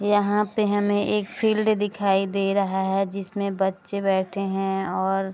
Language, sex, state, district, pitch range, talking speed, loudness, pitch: Hindi, female, Bihar, Araria, 195-205 Hz, 170 wpm, -24 LUFS, 200 Hz